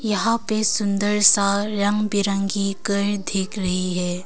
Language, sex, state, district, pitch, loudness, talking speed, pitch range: Hindi, female, Arunachal Pradesh, Longding, 200 Hz, -20 LUFS, 140 wpm, 195-210 Hz